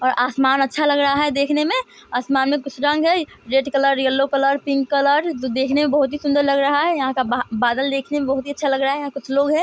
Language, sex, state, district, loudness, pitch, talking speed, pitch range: Hindi, female, Bihar, Vaishali, -19 LUFS, 275 Hz, 280 wpm, 270-290 Hz